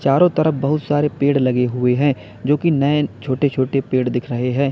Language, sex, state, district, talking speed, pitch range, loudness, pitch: Hindi, male, Uttar Pradesh, Lalitpur, 215 wpm, 125-145 Hz, -18 LUFS, 140 Hz